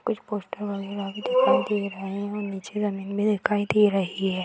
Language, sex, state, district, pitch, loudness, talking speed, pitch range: Hindi, female, Bihar, Gopalganj, 205 Hz, -25 LUFS, 230 wpm, 195-210 Hz